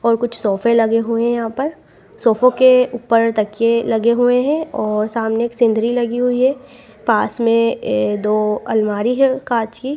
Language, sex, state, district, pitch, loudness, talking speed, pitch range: Hindi, female, Madhya Pradesh, Dhar, 230 Hz, -16 LUFS, 180 wpm, 225-245 Hz